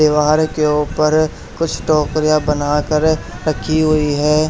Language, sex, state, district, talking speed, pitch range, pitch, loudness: Hindi, male, Haryana, Charkhi Dadri, 120 wpm, 150-155 Hz, 155 Hz, -16 LUFS